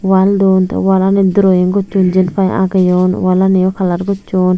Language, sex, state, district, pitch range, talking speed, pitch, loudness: Chakma, female, Tripura, Unakoti, 185-195 Hz, 170 wpm, 190 Hz, -12 LUFS